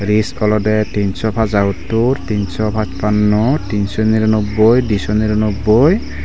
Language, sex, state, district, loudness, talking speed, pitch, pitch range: Chakma, male, Tripura, Dhalai, -15 LUFS, 125 wpm, 105 Hz, 105-110 Hz